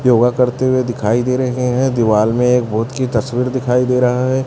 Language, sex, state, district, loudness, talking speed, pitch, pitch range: Hindi, male, Chhattisgarh, Raipur, -15 LUFS, 230 wpm, 125 Hz, 120-130 Hz